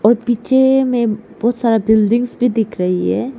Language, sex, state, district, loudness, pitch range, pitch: Hindi, female, Arunachal Pradesh, Lower Dibang Valley, -15 LUFS, 220-245 Hz, 235 Hz